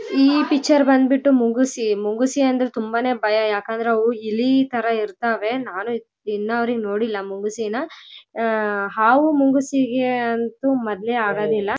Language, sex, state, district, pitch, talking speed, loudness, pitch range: Kannada, female, Karnataka, Bellary, 230 Hz, 120 wpm, -20 LUFS, 215-265 Hz